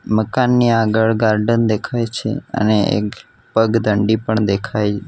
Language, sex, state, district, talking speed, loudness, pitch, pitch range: Gujarati, male, Gujarat, Valsad, 130 wpm, -17 LUFS, 110 Hz, 105-115 Hz